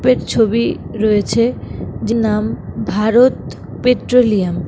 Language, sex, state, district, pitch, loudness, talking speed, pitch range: Bengali, female, West Bengal, Kolkata, 225 Hz, -15 LUFS, 75 wpm, 210-245 Hz